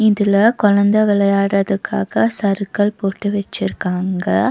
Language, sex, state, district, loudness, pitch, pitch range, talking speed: Tamil, female, Tamil Nadu, Nilgiris, -16 LUFS, 200 Hz, 195-205 Hz, 80 wpm